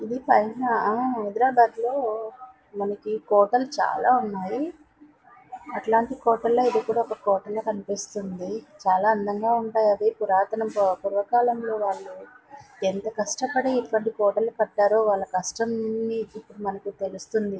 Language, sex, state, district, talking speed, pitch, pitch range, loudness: Telugu, female, Andhra Pradesh, Anantapur, 105 wpm, 220 Hz, 205-240 Hz, -24 LUFS